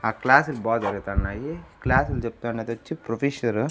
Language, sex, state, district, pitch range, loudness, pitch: Telugu, male, Andhra Pradesh, Annamaya, 115-140 Hz, -24 LUFS, 115 Hz